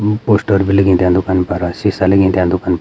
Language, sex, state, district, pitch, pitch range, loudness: Garhwali, male, Uttarakhand, Uttarkashi, 95 Hz, 90-100 Hz, -13 LUFS